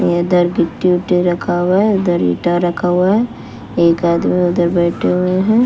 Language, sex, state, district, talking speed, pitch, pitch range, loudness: Hindi, female, Bihar, West Champaran, 180 wpm, 175 Hz, 175-180 Hz, -15 LUFS